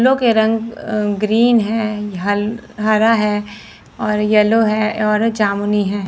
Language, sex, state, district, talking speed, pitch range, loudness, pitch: Hindi, female, Chandigarh, Chandigarh, 150 wpm, 210-225 Hz, -16 LUFS, 215 Hz